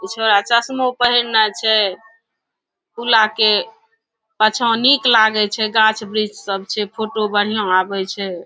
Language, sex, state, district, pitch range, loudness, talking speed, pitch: Maithili, female, Bihar, Saharsa, 205-230 Hz, -16 LUFS, 130 wpm, 220 Hz